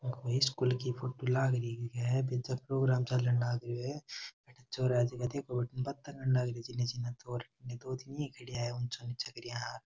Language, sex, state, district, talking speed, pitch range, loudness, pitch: Rajasthani, male, Rajasthan, Nagaur, 200 wpm, 120-130 Hz, -35 LUFS, 125 Hz